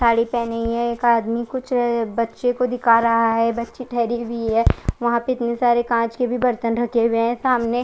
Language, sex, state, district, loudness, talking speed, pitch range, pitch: Hindi, female, Odisha, Khordha, -20 LUFS, 190 wpm, 230-245 Hz, 235 Hz